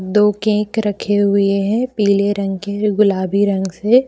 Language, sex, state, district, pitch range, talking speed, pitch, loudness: Hindi, female, Jharkhand, Deoghar, 200-210 Hz, 160 wpm, 205 Hz, -16 LUFS